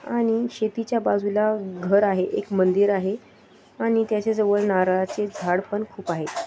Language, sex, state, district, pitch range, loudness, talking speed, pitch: Marathi, female, Maharashtra, Sindhudurg, 190-220 Hz, -23 LUFS, 150 wpm, 205 Hz